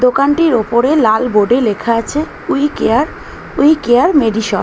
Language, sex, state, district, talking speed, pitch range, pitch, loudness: Bengali, female, West Bengal, Malda, 170 wpm, 225-290 Hz, 245 Hz, -13 LUFS